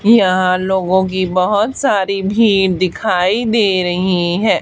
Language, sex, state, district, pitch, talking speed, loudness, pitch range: Hindi, female, Haryana, Charkhi Dadri, 190 Hz, 130 wpm, -14 LUFS, 185-205 Hz